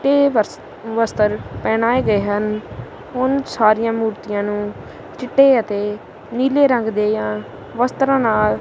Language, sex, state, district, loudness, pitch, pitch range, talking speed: Punjabi, male, Punjab, Kapurthala, -18 LUFS, 220 Hz, 205-255 Hz, 120 wpm